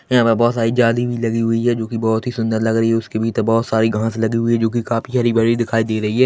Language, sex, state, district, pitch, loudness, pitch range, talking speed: Hindi, male, Chhattisgarh, Korba, 115 Hz, -17 LUFS, 115-120 Hz, 325 wpm